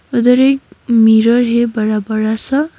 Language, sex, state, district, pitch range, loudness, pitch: Hindi, female, West Bengal, Darjeeling, 220-255 Hz, -13 LUFS, 235 Hz